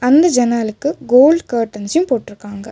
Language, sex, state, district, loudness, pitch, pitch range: Tamil, female, Tamil Nadu, Nilgiris, -15 LUFS, 245 Hz, 220-290 Hz